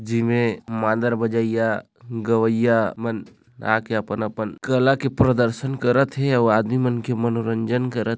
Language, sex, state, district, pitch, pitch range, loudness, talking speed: Chhattisgarhi, male, Chhattisgarh, Raigarh, 115 Hz, 110-125 Hz, -21 LUFS, 140 wpm